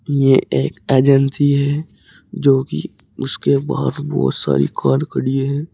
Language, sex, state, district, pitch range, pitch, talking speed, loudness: Hindi, male, Uttar Pradesh, Saharanpur, 130-140 Hz, 135 Hz, 135 wpm, -17 LUFS